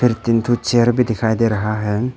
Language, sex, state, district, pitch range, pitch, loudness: Hindi, male, Arunachal Pradesh, Papum Pare, 110-120 Hz, 115 Hz, -17 LUFS